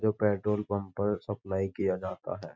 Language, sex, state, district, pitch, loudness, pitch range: Hindi, male, Uttar Pradesh, Jyotiba Phule Nagar, 105 Hz, -32 LUFS, 100-105 Hz